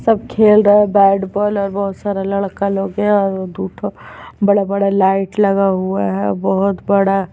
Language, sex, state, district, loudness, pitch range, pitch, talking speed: Hindi, female, Chhattisgarh, Sukma, -15 LUFS, 195-205 Hz, 195 Hz, 190 wpm